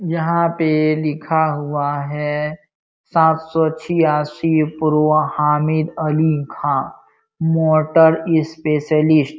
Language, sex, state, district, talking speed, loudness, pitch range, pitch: Hindi, male, Uttar Pradesh, Jalaun, 90 wpm, -17 LUFS, 150-160 Hz, 155 Hz